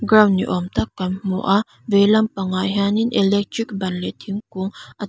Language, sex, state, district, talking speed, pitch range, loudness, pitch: Mizo, female, Mizoram, Aizawl, 175 wpm, 190-215 Hz, -20 LUFS, 200 Hz